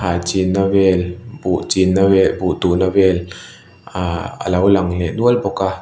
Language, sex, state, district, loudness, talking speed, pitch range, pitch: Mizo, male, Mizoram, Aizawl, -16 LUFS, 165 wpm, 90-95 Hz, 95 Hz